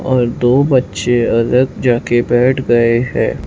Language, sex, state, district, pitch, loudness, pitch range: Hindi, male, Maharashtra, Mumbai Suburban, 120 Hz, -13 LUFS, 120-130 Hz